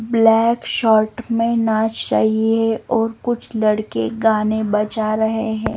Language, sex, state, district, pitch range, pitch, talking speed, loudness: Hindi, female, Himachal Pradesh, Shimla, 215-225 Hz, 220 Hz, 135 wpm, -18 LUFS